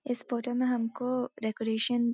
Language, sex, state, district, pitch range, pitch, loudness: Hindi, female, Uttarakhand, Uttarkashi, 230-250 Hz, 245 Hz, -31 LUFS